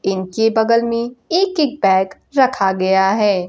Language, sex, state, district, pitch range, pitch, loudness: Hindi, female, Bihar, Kaimur, 190-250 Hz, 220 Hz, -16 LUFS